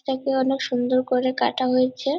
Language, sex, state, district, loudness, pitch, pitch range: Bengali, female, West Bengal, Purulia, -22 LUFS, 255 Hz, 255-270 Hz